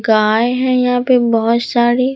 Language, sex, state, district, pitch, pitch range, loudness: Hindi, male, Bihar, Katihar, 240 Hz, 230-250 Hz, -14 LUFS